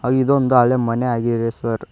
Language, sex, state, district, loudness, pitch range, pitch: Kannada, male, Karnataka, Koppal, -18 LUFS, 115-130 Hz, 120 Hz